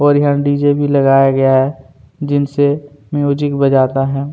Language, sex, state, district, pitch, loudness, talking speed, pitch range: Hindi, male, Chhattisgarh, Kabirdham, 140 Hz, -14 LUFS, 165 wpm, 135-145 Hz